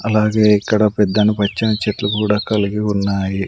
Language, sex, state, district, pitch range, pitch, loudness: Telugu, male, Andhra Pradesh, Sri Satya Sai, 100-105 Hz, 105 Hz, -16 LUFS